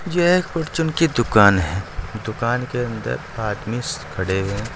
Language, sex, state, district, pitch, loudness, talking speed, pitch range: Hindi, male, Uttar Pradesh, Saharanpur, 115 Hz, -21 LUFS, 150 wpm, 100-150 Hz